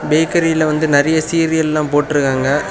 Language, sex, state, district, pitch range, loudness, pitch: Tamil, male, Tamil Nadu, Kanyakumari, 145-160 Hz, -15 LUFS, 155 Hz